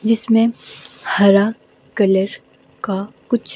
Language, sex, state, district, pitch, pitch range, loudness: Hindi, female, Himachal Pradesh, Shimla, 220 Hz, 200-230 Hz, -17 LUFS